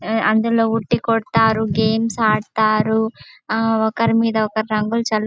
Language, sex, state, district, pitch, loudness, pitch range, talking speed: Telugu, female, Andhra Pradesh, Chittoor, 220 Hz, -18 LUFS, 220-225 Hz, 135 wpm